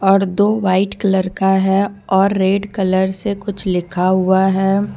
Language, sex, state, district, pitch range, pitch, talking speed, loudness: Hindi, female, Jharkhand, Deoghar, 190-200 Hz, 195 Hz, 170 wpm, -16 LUFS